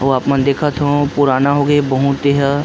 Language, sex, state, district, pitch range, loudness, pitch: Chhattisgarhi, male, Chhattisgarh, Rajnandgaon, 140-145 Hz, -14 LUFS, 140 Hz